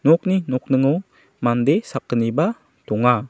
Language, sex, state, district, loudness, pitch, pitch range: Garo, male, Meghalaya, South Garo Hills, -20 LUFS, 135 Hz, 120-160 Hz